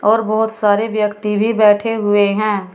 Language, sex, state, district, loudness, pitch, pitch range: Hindi, female, Uttar Pradesh, Shamli, -15 LUFS, 210 Hz, 205-220 Hz